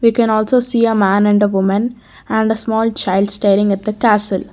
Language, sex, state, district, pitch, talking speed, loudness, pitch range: English, female, Karnataka, Bangalore, 215 Hz, 225 wpm, -15 LUFS, 200-225 Hz